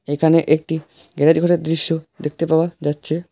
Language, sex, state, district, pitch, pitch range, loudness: Bengali, male, West Bengal, Alipurduar, 160 Hz, 155-165 Hz, -19 LUFS